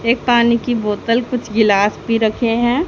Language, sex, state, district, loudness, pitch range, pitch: Hindi, female, Haryana, Charkhi Dadri, -16 LUFS, 220-240 Hz, 235 Hz